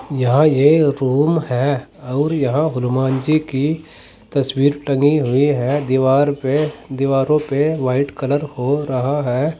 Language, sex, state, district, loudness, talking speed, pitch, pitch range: Hindi, male, Uttar Pradesh, Saharanpur, -17 LUFS, 135 wpm, 140 Hz, 130-150 Hz